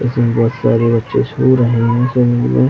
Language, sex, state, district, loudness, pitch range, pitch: Hindi, male, Chhattisgarh, Bilaspur, -14 LUFS, 115-125 Hz, 120 Hz